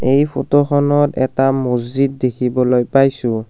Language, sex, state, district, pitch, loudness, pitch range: Assamese, male, Assam, Kamrup Metropolitan, 135 Hz, -16 LUFS, 125-140 Hz